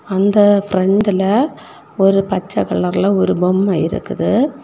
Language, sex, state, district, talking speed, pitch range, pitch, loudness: Tamil, female, Tamil Nadu, Kanyakumari, 105 wpm, 185-205 Hz, 195 Hz, -15 LUFS